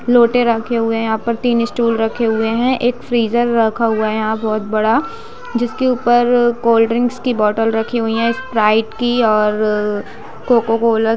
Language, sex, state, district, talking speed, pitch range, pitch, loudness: Hindi, female, Chhattisgarh, Sarguja, 175 wpm, 220-240 Hz, 230 Hz, -16 LUFS